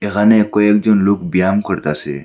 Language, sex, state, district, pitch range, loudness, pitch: Bengali, male, Assam, Hailakandi, 90-105 Hz, -14 LUFS, 100 Hz